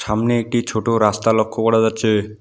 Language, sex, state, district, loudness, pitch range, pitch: Bengali, male, West Bengal, Alipurduar, -18 LUFS, 110-115 Hz, 110 Hz